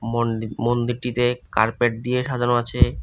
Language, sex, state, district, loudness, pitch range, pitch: Bengali, male, Tripura, West Tripura, -22 LUFS, 115-125 Hz, 120 Hz